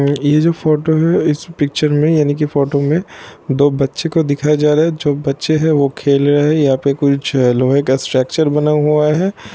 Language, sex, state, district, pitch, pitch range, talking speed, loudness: Hindi, male, Bihar, Sitamarhi, 150 Hz, 140-155 Hz, 215 wpm, -14 LUFS